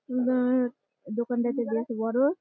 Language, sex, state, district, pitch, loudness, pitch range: Bengali, female, West Bengal, Malda, 245 Hz, -27 LUFS, 235-255 Hz